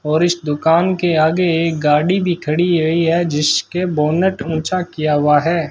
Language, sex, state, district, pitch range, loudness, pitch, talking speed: Hindi, male, Rajasthan, Bikaner, 155-175 Hz, -16 LUFS, 165 Hz, 180 wpm